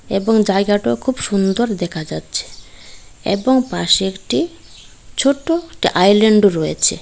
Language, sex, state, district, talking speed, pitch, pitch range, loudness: Bengali, female, Tripura, Dhalai, 110 wpm, 200 Hz, 160-225 Hz, -16 LUFS